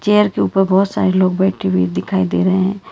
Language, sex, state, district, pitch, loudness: Hindi, female, Karnataka, Bangalore, 185 Hz, -16 LUFS